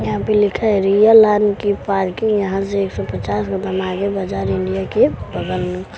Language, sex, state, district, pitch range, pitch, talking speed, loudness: Bhojpuri, female, Uttar Pradesh, Gorakhpur, 180-205 Hz, 195 Hz, 210 wpm, -17 LUFS